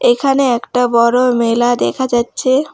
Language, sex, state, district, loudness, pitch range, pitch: Bengali, female, West Bengal, Alipurduar, -14 LUFS, 240-260 Hz, 245 Hz